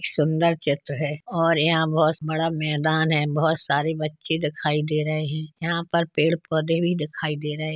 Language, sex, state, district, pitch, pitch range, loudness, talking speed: Hindi, male, Uttar Pradesh, Hamirpur, 155 Hz, 150-165 Hz, -23 LUFS, 195 wpm